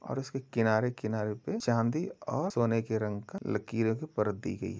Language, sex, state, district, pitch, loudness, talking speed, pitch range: Hindi, male, Uttar Pradesh, Jalaun, 115 Hz, -32 LUFS, 185 wpm, 105-120 Hz